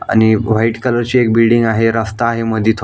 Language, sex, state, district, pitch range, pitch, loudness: Marathi, male, Maharashtra, Aurangabad, 110-115 Hz, 115 Hz, -14 LUFS